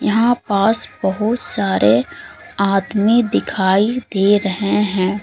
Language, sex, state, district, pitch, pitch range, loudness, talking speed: Hindi, female, Uttar Pradesh, Lalitpur, 205 Hz, 195-225 Hz, -16 LUFS, 105 wpm